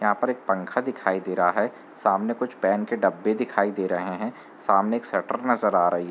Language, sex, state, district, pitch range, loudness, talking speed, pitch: Hindi, male, Uttar Pradesh, Muzaffarnagar, 95-115 Hz, -25 LUFS, 235 wpm, 100 Hz